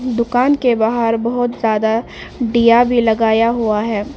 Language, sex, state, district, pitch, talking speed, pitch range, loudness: Hindi, female, Arunachal Pradesh, Papum Pare, 235 Hz, 145 wpm, 225-245 Hz, -15 LUFS